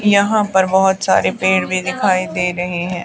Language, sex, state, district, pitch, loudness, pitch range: Hindi, female, Haryana, Charkhi Dadri, 190 Hz, -16 LUFS, 180-200 Hz